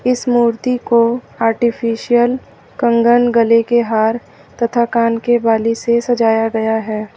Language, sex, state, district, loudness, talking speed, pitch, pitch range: Hindi, female, Uttar Pradesh, Lucknow, -15 LUFS, 135 wpm, 235 Hz, 225-240 Hz